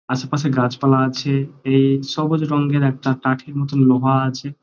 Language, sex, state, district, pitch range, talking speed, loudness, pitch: Bengali, male, West Bengal, Jalpaiguri, 130-145 Hz, 155 wpm, -18 LUFS, 135 Hz